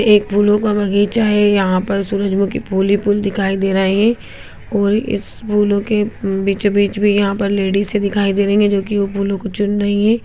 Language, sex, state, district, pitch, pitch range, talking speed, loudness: Hindi, male, Bihar, Lakhisarai, 205 Hz, 200-210 Hz, 210 wpm, -16 LUFS